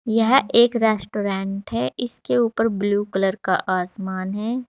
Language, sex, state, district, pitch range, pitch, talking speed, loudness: Hindi, female, Uttar Pradesh, Saharanpur, 195-230 Hz, 210 Hz, 140 wpm, -21 LUFS